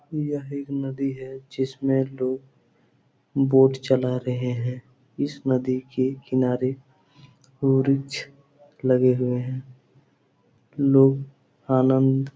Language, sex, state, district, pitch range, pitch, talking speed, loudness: Hindi, male, Bihar, Supaul, 130-140 Hz, 135 Hz, 115 wpm, -23 LUFS